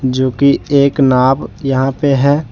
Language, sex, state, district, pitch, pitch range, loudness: Hindi, male, Jharkhand, Deoghar, 135 Hz, 130-140 Hz, -13 LUFS